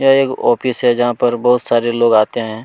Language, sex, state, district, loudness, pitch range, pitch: Hindi, male, Chhattisgarh, Kabirdham, -14 LUFS, 120-125 Hz, 120 Hz